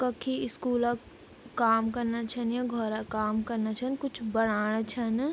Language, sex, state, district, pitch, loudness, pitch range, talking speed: Garhwali, female, Uttarakhand, Tehri Garhwal, 235 Hz, -30 LUFS, 220-245 Hz, 170 wpm